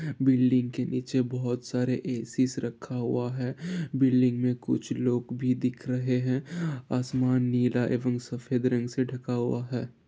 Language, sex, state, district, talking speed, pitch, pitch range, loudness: Hindi, male, Bihar, Gopalganj, 155 wpm, 125 Hz, 125-130 Hz, -28 LUFS